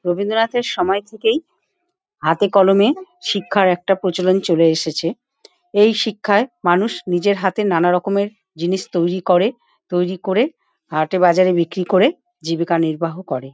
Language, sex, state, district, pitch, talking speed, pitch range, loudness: Bengali, female, West Bengal, Paschim Medinipur, 190 Hz, 135 wpm, 175-220 Hz, -18 LUFS